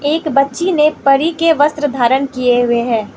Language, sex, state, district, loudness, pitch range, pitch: Hindi, female, Manipur, Imphal West, -14 LUFS, 245-305 Hz, 275 Hz